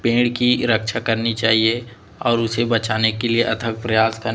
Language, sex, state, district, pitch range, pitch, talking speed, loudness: Hindi, male, Chhattisgarh, Raipur, 110-120 Hz, 115 Hz, 180 wpm, -19 LUFS